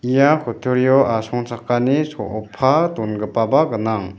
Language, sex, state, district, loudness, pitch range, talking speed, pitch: Garo, male, Meghalaya, West Garo Hills, -18 LUFS, 110-135 Hz, 85 wpm, 120 Hz